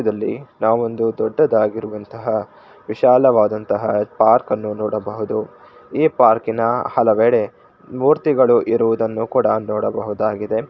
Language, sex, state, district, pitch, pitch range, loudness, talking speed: Kannada, male, Karnataka, Shimoga, 110 Hz, 105-115 Hz, -18 LUFS, 65 wpm